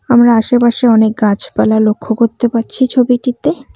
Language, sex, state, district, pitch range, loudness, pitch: Bengali, female, West Bengal, Cooch Behar, 220-245 Hz, -12 LUFS, 235 Hz